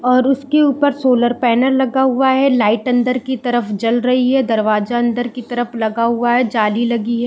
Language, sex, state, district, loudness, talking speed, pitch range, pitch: Hindi, female, Uttarakhand, Uttarkashi, -15 LUFS, 215 wpm, 235-260 Hz, 245 Hz